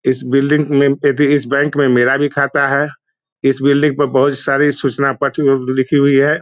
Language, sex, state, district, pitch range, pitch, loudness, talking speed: Hindi, male, Bihar, Muzaffarpur, 135-145 Hz, 140 Hz, -14 LUFS, 195 wpm